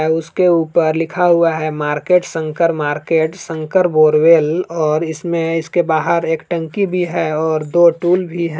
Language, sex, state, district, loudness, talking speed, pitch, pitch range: Hindi, male, Jharkhand, Palamu, -15 LUFS, 160 wpm, 165 Hz, 155-175 Hz